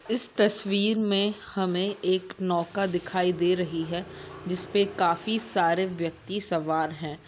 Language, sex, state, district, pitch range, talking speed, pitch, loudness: Hindi, female, Uttarakhand, Tehri Garhwal, 170-200 Hz, 130 wpm, 185 Hz, -27 LUFS